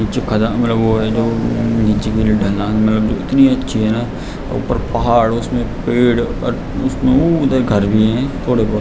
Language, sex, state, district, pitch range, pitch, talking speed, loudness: Hindi, male, Uttarakhand, Tehri Garhwal, 110-125 Hz, 115 Hz, 120 wpm, -15 LUFS